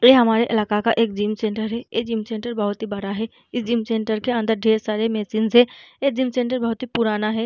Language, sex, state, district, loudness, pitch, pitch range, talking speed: Hindi, female, Bihar, Vaishali, -21 LUFS, 225 Hz, 220-235 Hz, 255 wpm